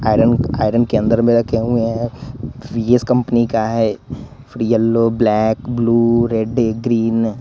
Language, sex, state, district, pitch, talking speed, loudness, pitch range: Hindi, male, Bihar, West Champaran, 115 Hz, 155 wpm, -16 LUFS, 115-120 Hz